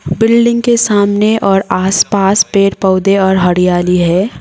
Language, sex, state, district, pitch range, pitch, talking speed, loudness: Hindi, female, Sikkim, Gangtok, 185-215 Hz, 195 Hz, 135 wpm, -11 LUFS